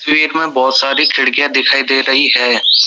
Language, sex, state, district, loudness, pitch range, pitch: Hindi, male, Rajasthan, Jaipur, -11 LUFS, 135-150 Hz, 135 Hz